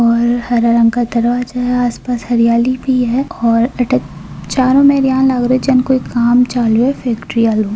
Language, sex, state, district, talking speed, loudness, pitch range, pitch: Hindi, female, Rajasthan, Nagaur, 165 wpm, -13 LUFS, 235-255 Hz, 245 Hz